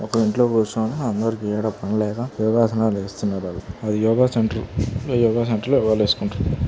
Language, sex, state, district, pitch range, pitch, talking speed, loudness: Telugu, male, Andhra Pradesh, Krishna, 105-115 Hz, 110 Hz, 160 wpm, -21 LUFS